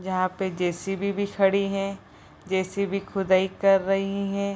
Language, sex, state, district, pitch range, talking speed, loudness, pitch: Hindi, female, Bihar, Bhagalpur, 190-200 Hz, 160 wpm, -25 LUFS, 195 Hz